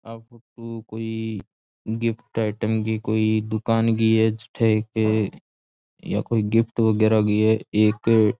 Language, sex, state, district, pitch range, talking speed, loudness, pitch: Rajasthani, male, Rajasthan, Churu, 110-115 Hz, 135 wpm, -22 LUFS, 110 Hz